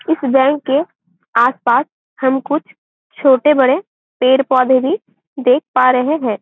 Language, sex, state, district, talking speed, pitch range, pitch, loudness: Hindi, female, Chhattisgarh, Bastar, 130 wpm, 260-295 Hz, 265 Hz, -14 LUFS